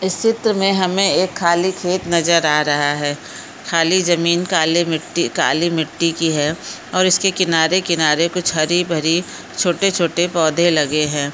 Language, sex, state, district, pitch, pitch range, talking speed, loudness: Hindi, female, Maharashtra, Dhule, 170 Hz, 160-185 Hz, 155 wpm, -17 LUFS